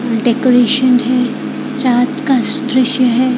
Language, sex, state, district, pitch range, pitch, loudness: Hindi, female, Odisha, Khordha, 245-260 Hz, 255 Hz, -13 LUFS